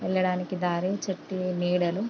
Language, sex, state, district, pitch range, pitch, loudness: Telugu, female, Andhra Pradesh, Krishna, 180-185 Hz, 185 Hz, -28 LUFS